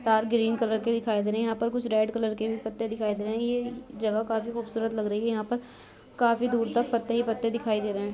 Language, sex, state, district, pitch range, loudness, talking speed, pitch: Hindi, female, Chhattisgarh, Bilaspur, 220-235 Hz, -28 LUFS, 280 wpm, 225 Hz